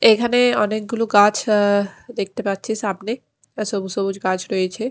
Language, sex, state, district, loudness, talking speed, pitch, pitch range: Bengali, female, Odisha, Khordha, -20 LUFS, 135 wpm, 210 Hz, 195-225 Hz